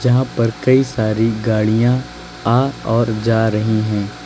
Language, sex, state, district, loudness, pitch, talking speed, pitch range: Hindi, male, Uttar Pradesh, Lucknow, -17 LUFS, 115 Hz, 140 wpm, 110-125 Hz